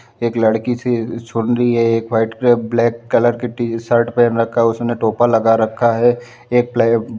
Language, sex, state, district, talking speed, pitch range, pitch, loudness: Hindi, male, Chhattisgarh, Bilaspur, 190 wpm, 115-120 Hz, 115 Hz, -16 LUFS